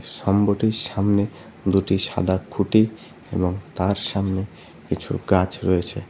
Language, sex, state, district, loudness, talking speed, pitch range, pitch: Bengali, male, West Bengal, Cooch Behar, -22 LUFS, 110 wpm, 95-105 Hz, 95 Hz